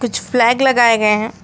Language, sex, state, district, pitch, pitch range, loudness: Hindi, female, West Bengal, Alipurduar, 235 Hz, 220-245 Hz, -13 LUFS